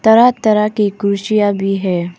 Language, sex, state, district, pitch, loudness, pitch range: Hindi, female, Arunachal Pradesh, Papum Pare, 205 Hz, -14 LUFS, 195-215 Hz